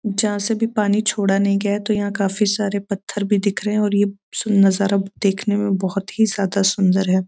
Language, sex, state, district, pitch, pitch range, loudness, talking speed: Hindi, female, Uttar Pradesh, Deoria, 200 Hz, 195-210 Hz, -19 LUFS, 240 wpm